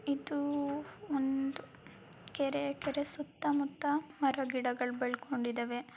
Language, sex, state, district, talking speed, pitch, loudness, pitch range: Kannada, female, Karnataka, Mysore, 70 wpm, 280 Hz, -35 LUFS, 255-290 Hz